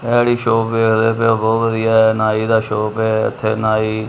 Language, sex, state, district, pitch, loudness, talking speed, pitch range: Punjabi, male, Punjab, Kapurthala, 110 Hz, -15 LUFS, 175 wpm, 110-115 Hz